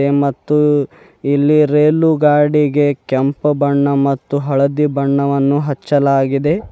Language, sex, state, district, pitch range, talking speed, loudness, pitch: Kannada, male, Karnataka, Bidar, 140-150 Hz, 90 wpm, -14 LUFS, 145 Hz